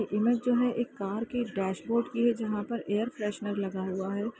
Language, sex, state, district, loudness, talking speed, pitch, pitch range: Hindi, female, Bihar, Saran, -30 LUFS, 230 wpm, 215 Hz, 205-235 Hz